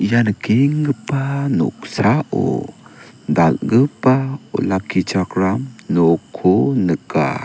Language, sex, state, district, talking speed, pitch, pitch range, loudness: Garo, male, Meghalaya, South Garo Hills, 55 wpm, 120 Hz, 95-135 Hz, -18 LUFS